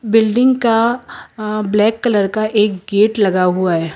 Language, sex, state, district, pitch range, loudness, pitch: Hindi, female, Rajasthan, Jaipur, 200-225 Hz, -15 LUFS, 215 Hz